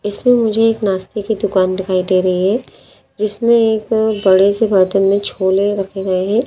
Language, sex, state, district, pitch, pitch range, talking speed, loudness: Hindi, female, Madhya Pradesh, Dhar, 205 Hz, 190-220 Hz, 185 wpm, -15 LUFS